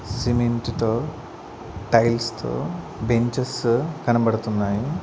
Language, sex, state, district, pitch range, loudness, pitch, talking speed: Telugu, male, Andhra Pradesh, Sri Satya Sai, 110-120 Hz, -23 LUFS, 115 Hz, 60 wpm